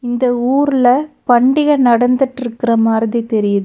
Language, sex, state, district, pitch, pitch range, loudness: Tamil, female, Tamil Nadu, Nilgiris, 245 Hz, 235-265 Hz, -14 LUFS